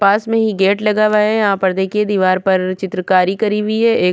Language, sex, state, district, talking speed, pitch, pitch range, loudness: Hindi, female, Chhattisgarh, Kabirdham, 260 wpm, 200 Hz, 190-215 Hz, -15 LUFS